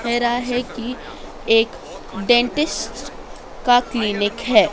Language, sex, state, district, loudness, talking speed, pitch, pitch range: Hindi, female, Madhya Pradesh, Dhar, -19 LUFS, 115 wpm, 240 Hz, 225-245 Hz